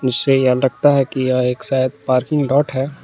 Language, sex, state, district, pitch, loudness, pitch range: Hindi, male, Jharkhand, Garhwa, 130 Hz, -17 LUFS, 130-140 Hz